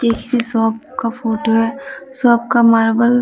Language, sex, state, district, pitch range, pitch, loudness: Hindi, female, Bihar, Patna, 225-245 Hz, 230 Hz, -15 LUFS